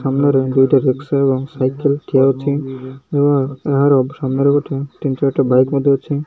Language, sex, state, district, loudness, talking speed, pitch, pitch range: Odia, male, Odisha, Malkangiri, -16 LUFS, 145 wpm, 140 Hz, 130-140 Hz